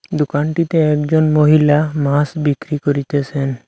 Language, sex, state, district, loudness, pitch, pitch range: Bengali, male, Assam, Hailakandi, -16 LUFS, 150 Hz, 145-155 Hz